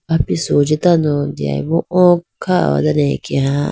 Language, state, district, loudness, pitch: Idu Mishmi, Arunachal Pradesh, Lower Dibang Valley, -15 LUFS, 150 Hz